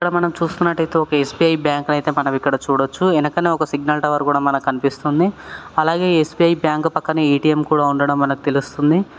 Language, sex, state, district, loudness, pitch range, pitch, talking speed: Telugu, male, Telangana, Karimnagar, -18 LUFS, 140-165 Hz, 150 Hz, 135 wpm